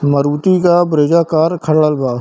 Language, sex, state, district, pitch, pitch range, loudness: Hindi, male, Bihar, Darbhanga, 155 Hz, 145-170 Hz, -13 LUFS